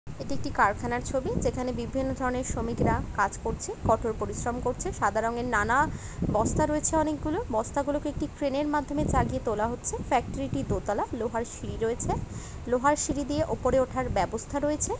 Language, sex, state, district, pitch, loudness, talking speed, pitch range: Bengali, female, West Bengal, Dakshin Dinajpur, 265 Hz, -28 LUFS, 180 wpm, 235-295 Hz